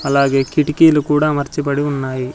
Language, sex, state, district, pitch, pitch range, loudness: Telugu, male, Andhra Pradesh, Sri Satya Sai, 145 Hz, 135-150 Hz, -15 LUFS